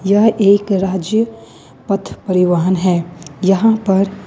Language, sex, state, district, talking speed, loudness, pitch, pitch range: Hindi, female, Jharkhand, Ranchi, 115 wpm, -15 LUFS, 195 Hz, 180-205 Hz